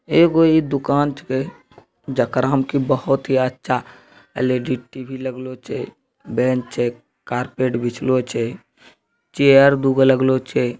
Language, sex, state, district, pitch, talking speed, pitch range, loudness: Angika, male, Bihar, Bhagalpur, 130 Hz, 130 wpm, 125-135 Hz, -19 LUFS